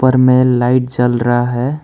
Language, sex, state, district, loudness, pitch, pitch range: Hindi, male, West Bengal, Alipurduar, -13 LUFS, 125 Hz, 120-130 Hz